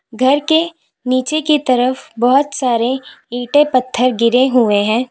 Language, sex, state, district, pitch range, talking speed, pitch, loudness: Hindi, female, Uttar Pradesh, Lalitpur, 245-290 Hz, 140 wpm, 255 Hz, -15 LUFS